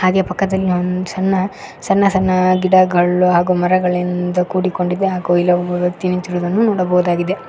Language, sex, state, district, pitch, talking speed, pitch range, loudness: Kannada, female, Karnataka, Koppal, 180 Hz, 120 wpm, 180-190 Hz, -16 LUFS